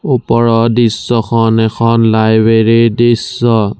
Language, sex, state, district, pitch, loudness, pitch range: Assamese, male, Assam, Sonitpur, 115 Hz, -11 LUFS, 110-120 Hz